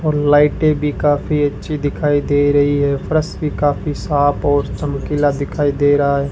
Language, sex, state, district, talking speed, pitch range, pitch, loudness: Hindi, male, Rajasthan, Bikaner, 180 wpm, 145-150 Hz, 145 Hz, -16 LUFS